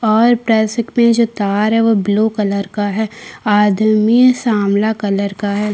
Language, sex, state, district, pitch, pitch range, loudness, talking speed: Hindi, female, Chhattisgarh, Kabirdham, 215 Hz, 205-230 Hz, -14 LUFS, 155 wpm